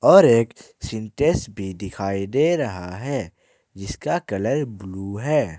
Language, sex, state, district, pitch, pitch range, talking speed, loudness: Hindi, male, Jharkhand, Ranchi, 105 Hz, 95-140 Hz, 130 wpm, -22 LUFS